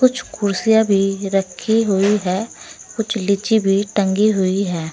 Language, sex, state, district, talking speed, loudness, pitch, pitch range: Hindi, female, Uttar Pradesh, Saharanpur, 145 wpm, -18 LUFS, 200 Hz, 195-220 Hz